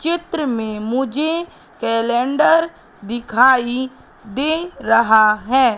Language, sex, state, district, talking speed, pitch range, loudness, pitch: Hindi, female, Madhya Pradesh, Katni, 85 wpm, 230-310 Hz, -17 LUFS, 255 Hz